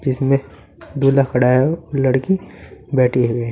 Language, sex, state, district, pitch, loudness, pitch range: Hindi, male, Uttar Pradesh, Saharanpur, 130 Hz, -17 LUFS, 125-135 Hz